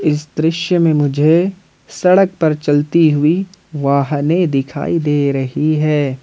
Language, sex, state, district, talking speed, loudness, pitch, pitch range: Hindi, male, Jharkhand, Ranchi, 125 wpm, -15 LUFS, 155 Hz, 145-170 Hz